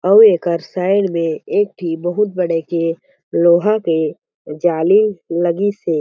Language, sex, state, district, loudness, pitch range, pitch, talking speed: Chhattisgarhi, male, Chhattisgarh, Jashpur, -16 LUFS, 165-200 Hz, 175 Hz, 140 wpm